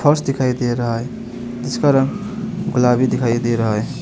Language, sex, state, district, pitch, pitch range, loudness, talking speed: Hindi, male, West Bengal, Alipurduar, 125 Hz, 120-140 Hz, -19 LUFS, 180 wpm